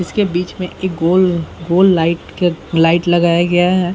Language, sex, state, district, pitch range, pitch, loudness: Hindi, male, Bihar, Saran, 170-180 Hz, 175 Hz, -15 LUFS